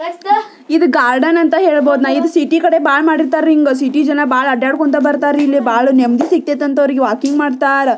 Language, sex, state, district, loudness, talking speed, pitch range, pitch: Kannada, female, Karnataka, Belgaum, -13 LUFS, 160 wpm, 275-320 Hz, 290 Hz